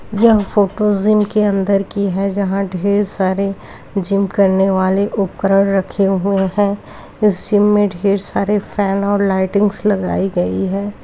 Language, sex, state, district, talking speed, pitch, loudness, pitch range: Hindi, female, Uttar Pradesh, Etah, 150 wpm, 200 Hz, -16 LUFS, 195-205 Hz